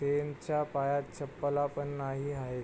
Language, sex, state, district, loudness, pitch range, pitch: Marathi, male, Maharashtra, Pune, -34 LUFS, 140-145 Hz, 145 Hz